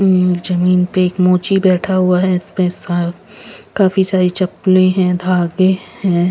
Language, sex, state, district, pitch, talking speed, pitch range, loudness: Hindi, female, Punjab, Pathankot, 185 Hz, 140 wpm, 180-190 Hz, -14 LUFS